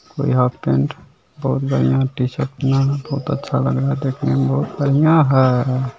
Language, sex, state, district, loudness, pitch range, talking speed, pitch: Hindi, male, Bihar, Gopalganj, -18 LUFS, 110-140 Hz, 190 wpm, 135 Hz